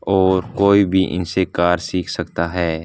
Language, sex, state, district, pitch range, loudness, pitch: Hindi, male, Punjab, Fazilka, 85-95 Hz, -18 LUFS, 90 Hz